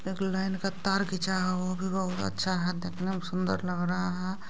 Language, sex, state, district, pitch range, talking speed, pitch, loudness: Hindi, male, Bihar, Kishanganj, 180-190 Hz, 225 wpm, 185 Hz, -30 LUFS